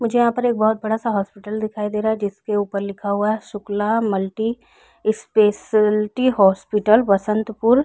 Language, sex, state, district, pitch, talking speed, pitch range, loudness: Hindi, female, Chhattisgarh, Rajnandgaon, 215 Hz, 170 wpm, 205-220 Hz, -20 LUFS